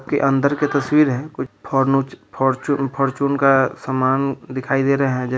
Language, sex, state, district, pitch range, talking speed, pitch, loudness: Bhojpuri, male, Bihar, Saran, 130-140 Hz, 180 wpm, 135 Hz, -19 LUFS